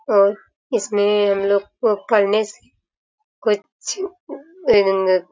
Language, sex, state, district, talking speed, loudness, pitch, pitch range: Hindi, female, Jharkhand, Sahebganj, 90 wpm, -19 LUFS, 210 Hz, 200-280 Hz